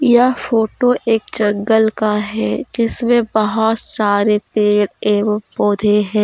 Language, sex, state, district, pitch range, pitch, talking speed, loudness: Hindi, female, Jharkhand, Deoghar, 210-230 Hz, 215 Hz, 125 wpm, -16 LUFS